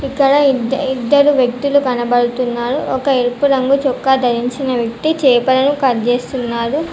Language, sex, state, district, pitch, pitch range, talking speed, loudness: Telugu, female, Telangana, Komaram Bheem, 260 Hz, 245-275 Hz, 120 wpm, -15 LUFS